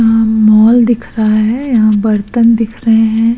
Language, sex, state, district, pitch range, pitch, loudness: Hindi, female, Uttar Pradesh, Hamirpur, 215-230 Hz, 225 Hz, -10 LUFS